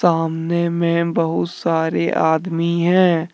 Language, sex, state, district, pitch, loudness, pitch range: Hindi, male, Jharkhand, Deoghar, 170 Hz, -18 LUFS, 160-170 Hz